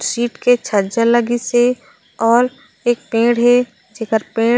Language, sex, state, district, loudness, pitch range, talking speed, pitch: Chhattisgarhi, female, Chhattisgarh, Raigarh, -16 LUFS, 230-245 Hz, 130 wpm, 240 Hz